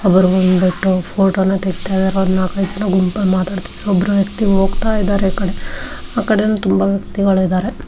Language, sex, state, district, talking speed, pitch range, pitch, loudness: Kannada, female, Karnataka, Dharwad, 160 wpm, 185-200 Hz, 195 Hz, -16 LUFS